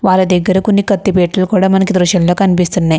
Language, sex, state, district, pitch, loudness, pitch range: Telugu, female, Andhra Pradesh, Krishna, 185 Hz, -12 LUFS, 180-195 Hz